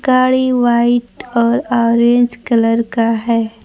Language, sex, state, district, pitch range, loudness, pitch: Hindi, female, Bihar, Kaimur, 230-245 Hz, -14 LUFS, 235 Hz